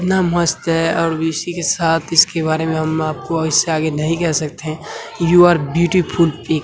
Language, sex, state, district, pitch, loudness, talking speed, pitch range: Hindi, male, Bihar, Saran, 165 Hz, -16 LUFS, 200 wpm, 155-170 Hz